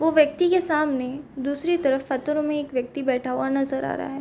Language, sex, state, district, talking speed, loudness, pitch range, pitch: Hindi, female, Chhattisgarh, Bilaspur, 215 wpm, -24 LUFS, 270-305 Hz, 280 Hz